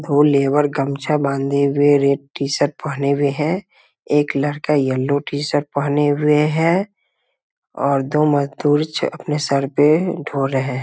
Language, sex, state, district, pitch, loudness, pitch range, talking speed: Hindi, male, Bihar, Muzaffarpur, 145 Hz, -18 LUFS, 140-150 Hz, 150 wpm